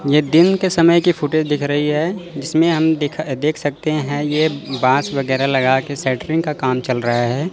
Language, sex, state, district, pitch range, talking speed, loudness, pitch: Hindi, male, Chandigarh, Chandigarh, 135-160 Hz, 185 wpm, -17 LUFS, 145 Hz